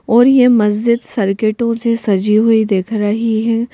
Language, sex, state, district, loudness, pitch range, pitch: Hindi, female, Madhya Pradesh, Bhopal, -14 LUFS, 210-235 Hz, 225 Hz